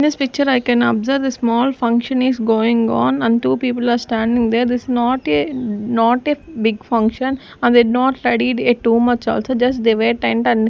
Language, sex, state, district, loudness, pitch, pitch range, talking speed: English, female, Maharashtra, Gondia, -16 LUFS, 240 Hz, 230-255 Hz, 195 wpm